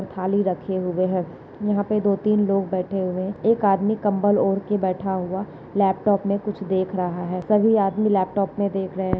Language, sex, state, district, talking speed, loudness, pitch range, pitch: Hindi, female, Maharashtra, Nagpur, 195 wpm, -22 LUFS, 185-205 Hz, 195 Hz